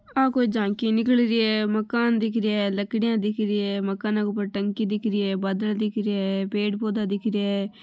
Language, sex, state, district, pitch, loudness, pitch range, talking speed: Marwari, female, Rajasthan, Nagaur, 210 Hz, -24 LUFS, 200-220 Hz, 215 wpm